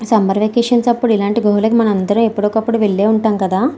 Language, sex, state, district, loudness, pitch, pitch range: Telugu, female, Andhra Pradesh, Srikakulam, -14 LUFS, 220 Hz, 205-230 Hz